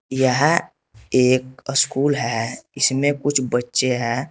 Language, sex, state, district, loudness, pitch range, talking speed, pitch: Hindi, male, Uttar Pradesh, Saharanpur, -20 LUFS, 125-140 Hz, 110 wpm, 130 Hz